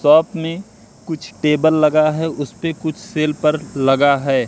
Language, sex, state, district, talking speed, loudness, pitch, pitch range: Hindi, male, Madhya Pradesh, Katni, 175 wpm, -17 LUFS, 155 Hz, 145-160 Hz